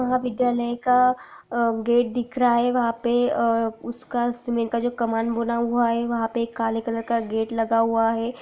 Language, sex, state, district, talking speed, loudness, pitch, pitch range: Hindi, female, Chhattisgarh, Raigarh, 205 wpm, -23 LUFS, 235 Hz, 230-245 Hz